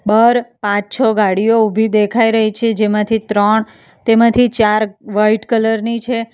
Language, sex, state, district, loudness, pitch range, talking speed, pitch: Gujarati, female, Gujarat, Valsad, -14 LUFS, 210-230 Hz, 150 wpm, 220 Hz